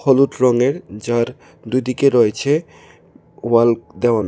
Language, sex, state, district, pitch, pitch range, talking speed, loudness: Bengali, male, Tripura, West Tripura, 125 Hz, 115-135 Hz, 100 wpm, -17 LUFS